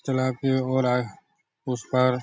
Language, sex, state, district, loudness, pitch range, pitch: Hindi, male, Bihar, Darbhanga, -25 LUFS, 125-130 Hz, 130 Hz